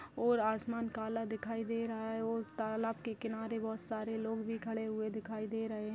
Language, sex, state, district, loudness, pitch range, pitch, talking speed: Hindi, female, Maharashtra, Aurangabad, -38 LUFS, 220-225 Hz, 225 Hz, 210 wpm